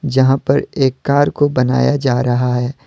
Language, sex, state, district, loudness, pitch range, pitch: Hindi, male, Jharkhand, Deoghar, -15 LUFS, 125-140 Hz, 135 Hz